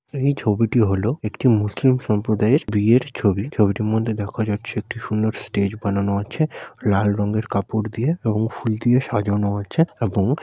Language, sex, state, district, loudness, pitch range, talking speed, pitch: Bengali, male, West Bengal, Malda, -21 LUFS, 105-120 Hz, 155 wpm, 110 Hz